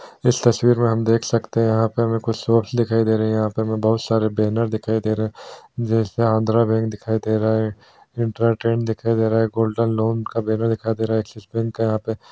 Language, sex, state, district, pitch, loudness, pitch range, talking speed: Hindi, male, Bihar, Kishanganj, 115 Hz, -20 LUFS, 110-115 Hz, 255 wpm